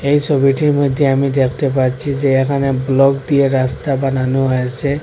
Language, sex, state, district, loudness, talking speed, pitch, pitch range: Bengali, male, Assam, Hailakandi, -15 LUFS, 155 wpm, 135 Hz, 135-140 Hz